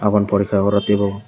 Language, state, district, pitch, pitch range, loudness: Kokborok, Tripura, West Tripura, 100 Hz, 100-105 Hz, -17 LUFS